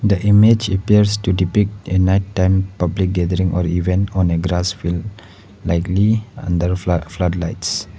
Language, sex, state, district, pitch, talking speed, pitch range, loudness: English, male, Arunachal Pradesh, Lower Dibang Valley, 95 Hz, 155 wpm, 90-100 Hz, -17 LUFS